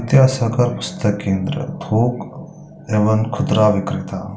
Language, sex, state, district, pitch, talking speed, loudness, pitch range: Hindi, male, Bihar, Gaya, 120 Hz, 95 wpm, -18 LUFS, 105-135 Hz